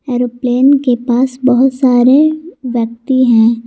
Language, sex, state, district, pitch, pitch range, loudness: Hindi, female, Jharkhand, Garhwa, 250 Hz, 245-265 Hz, -12 LUFS